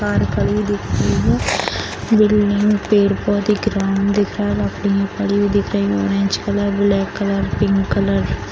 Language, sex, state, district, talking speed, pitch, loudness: Hindi, female, Bihar, Samastipur, 155 wpm, 200 Hz, -17 LUFS